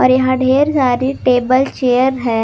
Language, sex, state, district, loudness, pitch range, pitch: Hindi, female, Jharkhand, Palamu, -14 LUFS, 250-260 Hz, 255 Hz